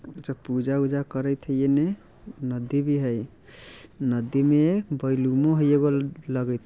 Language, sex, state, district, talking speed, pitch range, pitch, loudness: Bajjika, male, Bihar, Vaishali, 145 wpm, 130-145 Hz, 140 Hz, -24 LUFS